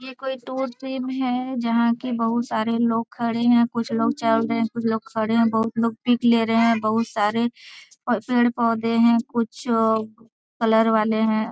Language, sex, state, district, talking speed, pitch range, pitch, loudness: Hindi, female, Bihar, Jamui, 180 wpm, 225-240 Hz, 230 Hz, -22 LUFS